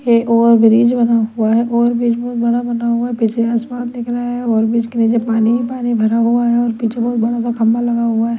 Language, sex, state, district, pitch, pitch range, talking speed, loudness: Hindi, female, Punjab, Kapurthala, 235 Hz, 230-240 Hz, 250 wpm, -15 LUFS